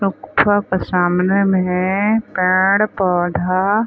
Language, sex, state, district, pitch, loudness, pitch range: Chhattisgarhi, female, Chhattisgarh, Sarguja, 190 Hz, -16 LUFS, 185-200 Hz